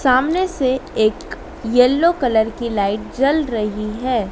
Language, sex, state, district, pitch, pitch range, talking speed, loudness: Hindi, female, Madhya Pradesh, Dhar, 250 Hz, 220-265 Hz, 140 wpm, -18 LUFS